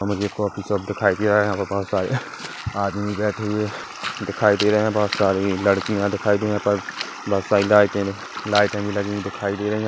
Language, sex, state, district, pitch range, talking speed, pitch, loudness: Hindi, male, Chhattisgarh, Kabirdham, 100-105 Hz, 230 wpm, 100 Hz, -21 LUFS